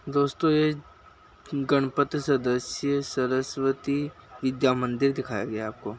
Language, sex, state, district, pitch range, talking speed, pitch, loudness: Hindi, male, Bihar, Bhagalpur, 125-140 Hz, 100 wpm, 135 Hz, -26 LUFS